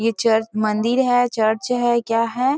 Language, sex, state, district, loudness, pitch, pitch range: Hindi, female, Chhattisgarh, Rajnandgaon, -19 LUFS, 230 Hz, 220-245 Hz